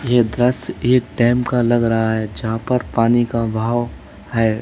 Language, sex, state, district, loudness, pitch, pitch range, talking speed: Hindi, male, Uttar Pradesh, Lalitpur, -17 LUFS, 120 Hz, 110-120 Hz, 180 wpm